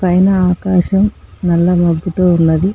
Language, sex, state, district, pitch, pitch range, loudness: Telugu, female, Telangana, Mahabubabad, 180 Hz, 175-190 Hz, -13 LUFS